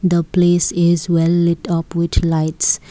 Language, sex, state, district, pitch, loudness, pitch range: English, female, Assam, Kamrup Metropolitan, 170 Hz, -16 LUFS, 165-175 Hz